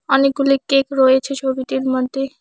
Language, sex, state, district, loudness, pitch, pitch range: Bengali, female, West Bengal, Alipurduar, -17 LUFS, 270 Hz, 265-275 Hz